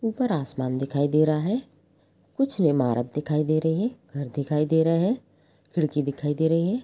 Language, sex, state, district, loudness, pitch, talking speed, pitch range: Hindi, female, Bihar, Madhepura, -25 LUFS, 155 Hz, 235 wpm, 145-175 Hz